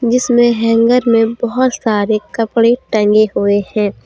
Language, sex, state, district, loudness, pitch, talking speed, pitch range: Hindi, female, Jharkhand, Deoghar, -13 LUFS, 230 Hz, 135 wpm, 215-240 Hz